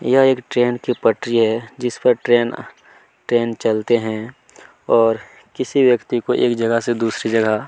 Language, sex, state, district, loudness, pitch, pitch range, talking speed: Hindi, male, Chhattisgarh, Kabirdham, -18 LUFS, 120 Hz, 115-125 Hz, 155 wpm